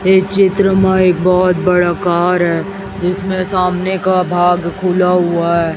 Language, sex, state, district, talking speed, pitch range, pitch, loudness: Hindi, female, Chhattisgarh, Raipur, 155 wpm, 175-190 Hz, 180 Hz, -13 LUFS